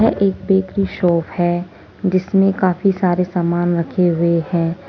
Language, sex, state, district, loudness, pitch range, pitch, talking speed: Hindi, female, Uttar Pradesh, Saharanpur, -17 LUFS, 175-190 Hz, 180 Hz, 135 wpm